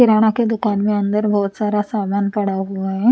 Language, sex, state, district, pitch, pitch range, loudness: Hindi, female, Punjab, Pathankot, 210 Hz, 200-215 Hz, -18 LUFS